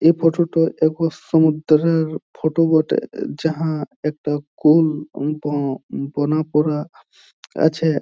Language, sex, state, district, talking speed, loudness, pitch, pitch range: Bengali, male, West Bengal, Jhargram, 105 wpm, -19 LUFS, 155 Hz, 150-160 Hz